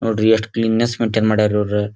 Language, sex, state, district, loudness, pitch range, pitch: Kannada, male, Karnataka, Dharwad, -17 LUFS, 105-115 Hz, 110 Hz